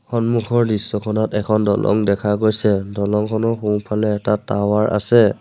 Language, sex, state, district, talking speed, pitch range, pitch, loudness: Assamese, male, Assam, Sonitpur, 120 wpm, 105-110 Hz, 105 Hz, -18 LUFS